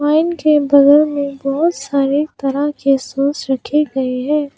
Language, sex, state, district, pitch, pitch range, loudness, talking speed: Hindi, female, Arunachal Pradesh, Papum Pare, 285 Hz, 275-300 Hz, -15 LUFS, 155 wpm